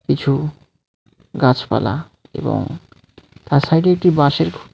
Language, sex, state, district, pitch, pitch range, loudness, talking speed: Bengali, male, West Bengal, Alipurduar, 145 Hz, 135-160 Hz, -17 LUFS, 115 wpm